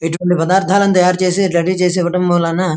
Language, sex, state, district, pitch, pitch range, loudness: Telugu, male, Andhra Pradesh, Krishna, 180 Hz, 175-185 Hz, -14 LUFS